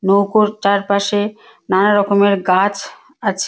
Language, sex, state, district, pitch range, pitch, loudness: Bengali, female, West Bengal, Malda, 200-210 Hz, 200 Hz, -15 LUFS